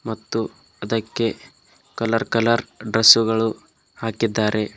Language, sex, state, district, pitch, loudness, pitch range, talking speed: Kannada, male, Karnataka, Bidar, 115 Hz, -20 LUFS, 110-115 Hz, 75 wpm